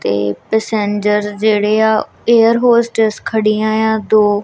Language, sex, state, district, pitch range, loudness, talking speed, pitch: Punjabi, female, Punjab, Kapurthala, 210-220 Hz, -14 LUFS, 120 wpm, 215 Hz